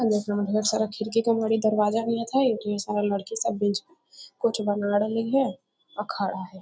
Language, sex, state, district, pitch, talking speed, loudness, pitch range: Maithili, female, Bihar, Muzaffarpur, 215 Hz, 190 wpm, -26 LUFS, 205-230 Hz